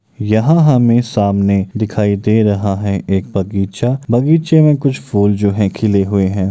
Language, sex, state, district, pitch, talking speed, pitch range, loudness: Maithili, male, Bihar, Muzaffarpur, 105 Hz, 165 wpm, 100-120 Hz, -14 LUFS